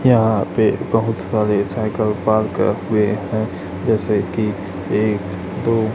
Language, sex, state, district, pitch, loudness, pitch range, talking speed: Hindi, male, Chhattisgarh, Raipur, 105 Hz, -19 LUFS, 95-110 Hz, 130 wpm